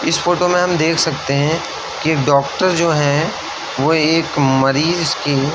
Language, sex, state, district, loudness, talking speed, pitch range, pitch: Hindi, male, Uttar Pradesh, Varanasi, -16 LUFS, 175 wpm, 140-165 Hz, 160 Hz